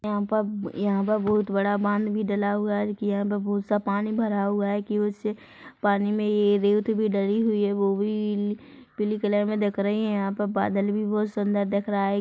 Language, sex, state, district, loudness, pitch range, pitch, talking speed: Hindi, female, Chhattisgarh, Rajnandgaon, -25 LUFS, 200-210 Hz, 205 Hz, 230 wpm